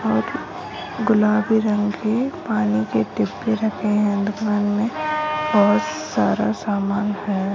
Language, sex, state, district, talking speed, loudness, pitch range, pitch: Marathi, female, Maharashtra, Sindhudurg, 120 wpm, -21 LUFS, 200-220 Hz, 210 Hz